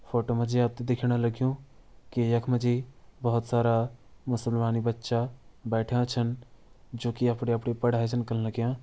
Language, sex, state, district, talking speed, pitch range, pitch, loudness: Garhwali, male, Uttarakhand, Tehri Garhwal, 165 wpm, 115-125 Hz, 120 Hz, -28 LUFS